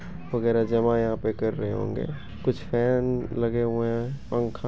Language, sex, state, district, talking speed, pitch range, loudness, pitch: Hindi, male, Bihar, Begusarai, 180 wpm, 115-120 Hz, -26 LUFS, 115 Hz